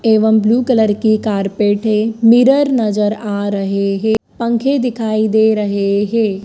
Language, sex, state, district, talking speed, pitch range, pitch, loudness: Hindi, female, Madhya Pradesh, Dhar, 150 wpm, 205-230 Hz, 220 Hz, -14 LUFS